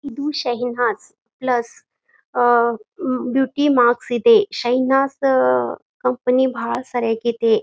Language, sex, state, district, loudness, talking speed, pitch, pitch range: Kannada, female, Karnataka, Gulbarga, -19 LUFS, 110 wpm, 245 Hz, 235-270 Hz